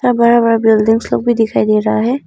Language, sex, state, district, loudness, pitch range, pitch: Hindi, female, Arunachal Pradesh, Papum Pare, -12 LUFS, 215-235 Hz, 225 Hz